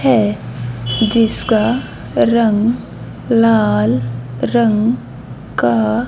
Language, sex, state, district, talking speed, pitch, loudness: Hindi, female, Haryana, Jhajjar, 60 wpm, 210 Hz, -15 LUFS